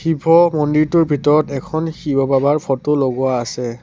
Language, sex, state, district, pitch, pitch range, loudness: Assamese, male, Assam, Sonitpur, 150 Hz, 135-160 Hz, -16 LUFS